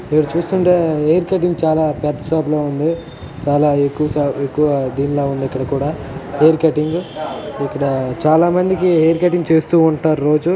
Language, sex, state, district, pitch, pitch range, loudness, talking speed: Telugu, male, Telangana, Nalgonda, 155 Hz, 145-165 Hz, -16 LUFS, 155 wpm